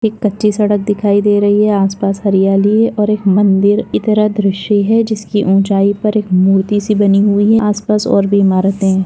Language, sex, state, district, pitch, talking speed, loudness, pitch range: Hindi, female, Bihar, Kishanganj, 205 Hz, 205 wpm, -12 LUFS, 195-210 Hz